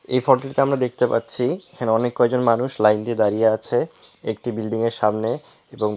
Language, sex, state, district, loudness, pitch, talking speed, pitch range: Bengali, male, West Bengal, Jalpaiguri, -21 LUFS, 115 Hz, 190 wpm, 110-125 Hz